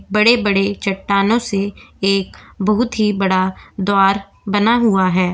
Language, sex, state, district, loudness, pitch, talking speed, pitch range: Hindi, female, Goa, North and South Goa, -16 LUFS, 200 Hz, 135 wpm, 195-210 Hz